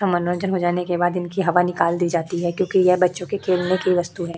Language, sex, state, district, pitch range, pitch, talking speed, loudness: Hindi, female, Maharashtra, Chandrapur, 175-185 Hz, 180 Hz, 260 wpm, -20 LUFS